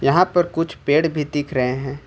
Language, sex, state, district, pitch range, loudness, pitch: Hindi, male, Jharkhand, Ranchi, 135-165 Hz, -20 LUFS, 145 Hz